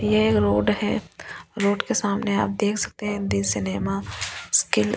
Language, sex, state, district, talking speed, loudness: Hindi, female, Delhi, New Delhi, 170 wpm, -23 LUFS